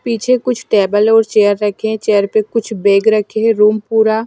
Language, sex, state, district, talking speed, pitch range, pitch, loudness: Hindi, female, Himachal Pradesh, Shimla, 210 wpm, 210-225 Hz, 220 Hz, -13 LUFS